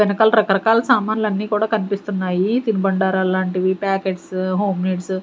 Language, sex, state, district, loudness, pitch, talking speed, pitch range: Telugu, female, Andhra Pradesh, Sri Satya Sai, -19 LUFS, 195 Hz, 150 wpm, 185-215 Hz